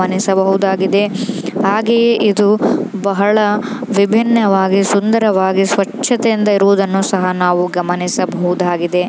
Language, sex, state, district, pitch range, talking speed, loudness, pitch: Kannada, male, Karnataka, Dharwad, 190-215 Hz, 75 wpm, -14 LUFS, 200 Hz